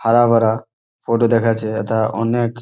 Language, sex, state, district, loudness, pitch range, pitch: Bengali, male, West Bengal, Malda, -17 LUFS, 110-115 Hz, 115 Hz